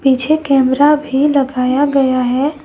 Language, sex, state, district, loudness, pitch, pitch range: Hindi, female, Jharkhand, Deoghar, -13 LUFS, 275 Hz, 260-290 Hz